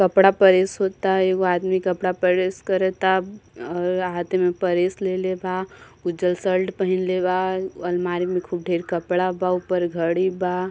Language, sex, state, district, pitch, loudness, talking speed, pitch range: Bhojpuri, female, Uttar Pradesh, Gorakhpur, 185 Hz, -22 LUFS, 150 wpm, 180-190 Hz